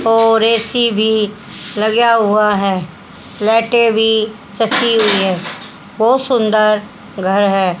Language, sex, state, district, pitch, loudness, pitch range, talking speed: Hindi, female, Haryana, Jhajjar, 215 Hz, -14 LUFS, 205-225 Hz, 105 wpm